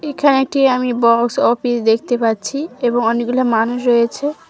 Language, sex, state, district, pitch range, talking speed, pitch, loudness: Bengali, female, West Bengal, Cooch Behar, 235-270 Hz, 145 wpm, 245 Hz, -16 LUFS